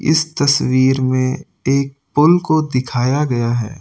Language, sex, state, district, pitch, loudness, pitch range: Hindi, male, Delhi, New Delhi, 135 Hz, -16 LUFS, 130-150 Hz